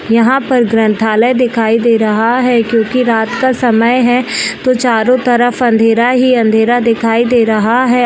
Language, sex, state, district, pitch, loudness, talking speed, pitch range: Hindi, female, Chhattisgarh, Rajnandgaon, 235 Hz, -11 LUFS, 165 wpm, 225-250 Hz